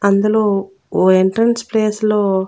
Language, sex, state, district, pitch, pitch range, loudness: Telugu, female, Andhra Pradesh, Annamaya, 205 Hz, 195-220 Hz, -15 LUFS